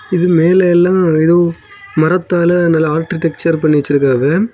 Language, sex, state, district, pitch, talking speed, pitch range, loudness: Tamil, male, Tamil Nadu, Kanyakumari, 170 Hz, 120 wpm, 155-180 Hz, -12 LUFS